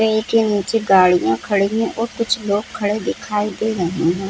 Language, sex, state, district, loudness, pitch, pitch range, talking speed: Hindi, female, Jharkhand, Sahebganj, -18 LUFS, 210 Hz, 190-220 Hz, 195 wpm